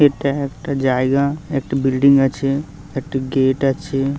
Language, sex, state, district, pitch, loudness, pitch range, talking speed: Bengali, male, West Bengal, Jalpaiguri, 135 Hz, -18 LUFS, 135-140 Hz, 130 wpm